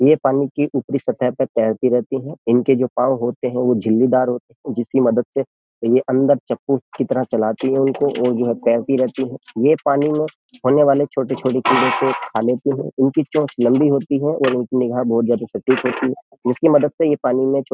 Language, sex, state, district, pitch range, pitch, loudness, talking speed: Hindi, male, Uttar Pradesh, Jyotiba Phule Nagar, 125-140 Hz, 130 Hz, -18 LUFS, 225 wpm